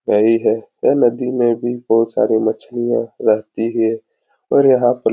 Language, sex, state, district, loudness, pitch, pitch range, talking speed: Hindi, male, Uttar Pradesh, Etah, -16 LUFS, 115 Hz, 110-120 Hz, 175 wpm